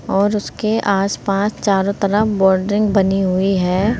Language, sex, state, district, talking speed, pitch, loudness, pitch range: Hindi, female, Uttar Pradesh, Saharanpur, 135 wpm, 200 Hz, -17 LUFS, 195-210 Hz